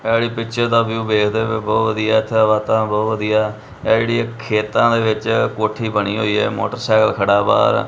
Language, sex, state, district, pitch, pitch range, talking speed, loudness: Punjabi, male, Punjab, Kapurthala, 110 Hz, 105-115 Hz, 190 wpm, -17 LUFS